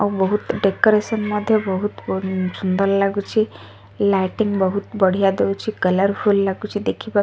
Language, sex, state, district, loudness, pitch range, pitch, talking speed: Odia, female, Odisha, Sambalpur, -20 LUFS, 190-210 Hz, 200 Hz, 125 wpm